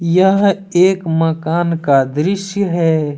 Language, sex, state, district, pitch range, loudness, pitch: Hindi, male, Jharkhand, Deoghar, 160-190 Hz, -15 LUFS, 170 Hz